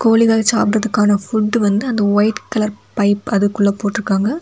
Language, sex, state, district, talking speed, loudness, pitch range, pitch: Tamil, female, Tamil Nadu, Kanyakumari, 135 wpm, -16 LUFS, 205-225 Hz, 210 Hz